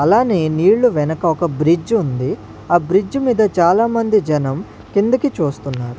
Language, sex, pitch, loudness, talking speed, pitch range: Telugu, male, 170 Hz, -16 LUFS, 130 wpm, 150-215 Hz